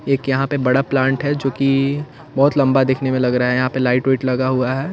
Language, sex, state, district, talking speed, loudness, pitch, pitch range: Hindi, male, Chandigarh, Chandigarh, 255 wpm, -17 LUFS, 135 Hz, 130-135 Hz